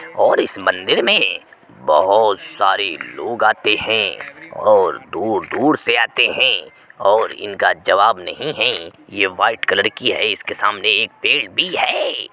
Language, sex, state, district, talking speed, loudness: Hindi, male, Uttar Pradesh, Jyotiba Phule Nagar, 150 wpm, -16 LUFS